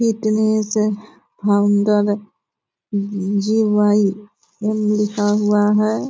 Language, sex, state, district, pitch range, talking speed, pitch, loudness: Hindi, female, Bihar, Purnia, 205-215 Hz, 60 wpm, 210 Hz, -18 LUFS